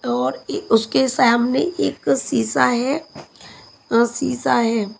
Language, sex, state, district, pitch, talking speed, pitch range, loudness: Hindi, female, Punjab, Kapurthala, 235 Hz, 110 wpm, 215-265 Hz, -19 LUFS